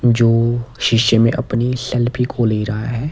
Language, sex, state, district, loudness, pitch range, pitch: Hindi, male, Himachal Pradesh, Shimla, -17 LUFS, 115-125 Hz, 120 Hz